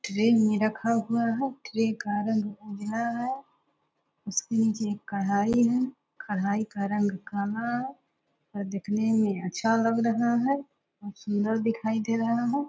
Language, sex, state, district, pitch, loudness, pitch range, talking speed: Hindi, female, Bihar, Purnia, 220 Hz, -27 LUFS, 205-235 Hz, 155 wpm